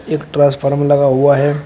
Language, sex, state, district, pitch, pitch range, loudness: Hindi, male, Uttar Pradesh, Shamli, 145 Hz, 140-145 Hz, -13 LUFS